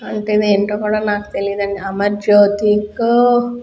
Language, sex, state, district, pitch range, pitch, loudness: Telugu, female, Andhra Pradesh, Guntur, 205-215 Hz, 210 Hz, -15 LUFS